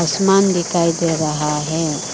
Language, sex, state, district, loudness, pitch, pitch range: Hindi, female, Arunachal Pradesh, Lower Dibang Valley, -17 LUFS, 165 Hz, 155-175 Hz